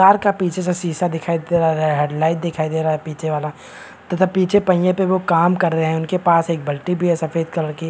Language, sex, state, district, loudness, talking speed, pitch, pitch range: Hindi, male, Bihar, Kishanganj, -18 LUFS, 250 wpm, 170 Hz, 160-180 Hz